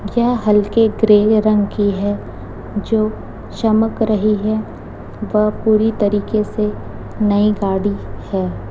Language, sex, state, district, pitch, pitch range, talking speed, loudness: Hindi, female, Chhattisgarh, Raipur, 210 Hz, 205-220 Hz, 115 wpm, -17 LUFS